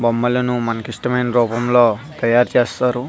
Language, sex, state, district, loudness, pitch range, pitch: Telugu, male, Andhra Pradesh, Visakhapatnam, -17 LUFS, 115-125 Hz, 120 Hz